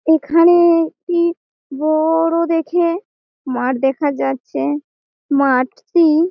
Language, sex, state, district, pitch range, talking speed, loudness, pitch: Bengali, female, West Bengal, Malda, 270-335 Hz, 75 wpm, -16 LUFS, 320 Hz